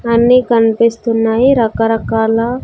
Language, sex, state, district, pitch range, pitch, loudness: Telugu, female, Andhra Pradesh, Sri Satya Sai, 225-240 Hz, 230 Hz, -12 LUFS